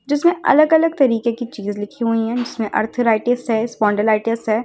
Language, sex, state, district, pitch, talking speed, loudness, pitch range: Hindi, female, Uttar Pradesh, Lucknow, 230 Hz, 180 wpm, -18 LUFS, 220-245 Hz